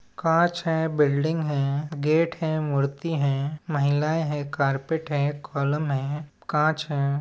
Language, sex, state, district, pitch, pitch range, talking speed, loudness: Chhattisgarhi, male, Chhattisgarh, Balrampur, 150 Hz, 140-160 Hz, 135 wpm, -25 LUFS